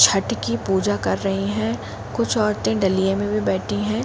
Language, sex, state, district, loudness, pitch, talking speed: Hindi, female, Uttar Pradesh, Jalaun, -21 LUFS, 115 Hz, 195 wpm